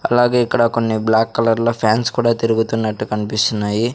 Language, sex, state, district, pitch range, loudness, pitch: Telugu, male, Andhra Pradesh, Sri Satya Sai, 110-115 Hz, -17 LUFS, 115 Hz